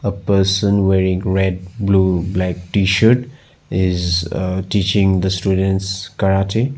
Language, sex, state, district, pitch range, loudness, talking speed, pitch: English, male, Assam, Sonitpur, 95-100 Hz, -17 LUFS, 125 wpm, 95 Hz